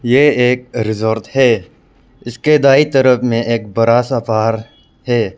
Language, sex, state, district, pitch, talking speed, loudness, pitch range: Hindi, male, Arunachal Pradesh, Lower Dibang Valley, 120 Hz, 145 wpm, -14 LUFS, 115-130 Hz